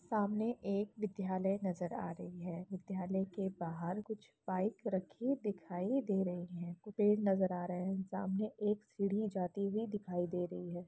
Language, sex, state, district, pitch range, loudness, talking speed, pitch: Hindi, female, Bihar, Lakhisarai, 180-210 Hz, -39 LUFS, 170 wpm, 190 Hz